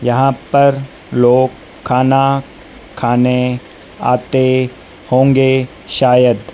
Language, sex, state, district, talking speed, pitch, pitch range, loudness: Hindi, male, Madhya Pradesh, Dhar, 75 wpm, 130 Hz, 125-135 Hz, -13 LUFS